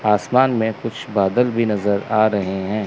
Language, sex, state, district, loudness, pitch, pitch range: Hindi, male, Chandigarh, Chandigarh, -19 LUFS, 110 Hz, 100-115 Hz